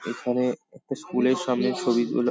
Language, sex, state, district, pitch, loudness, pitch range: Bengali, male, West Bengal, Paschim Medinipur, 125 Hz, -25 LUFS, 125-130 Hz